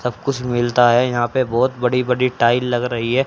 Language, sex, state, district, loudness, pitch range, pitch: Hindi, male, Haryana, Charkhi Dadri, -18 LUFS, 120-125 Hz, 125 Hz